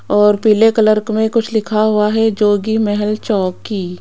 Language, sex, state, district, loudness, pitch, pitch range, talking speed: Hindi, female, Rajasthan, Jaipur, -14 LUFS, 215 Hz, 210-220 Hz, 195 wpm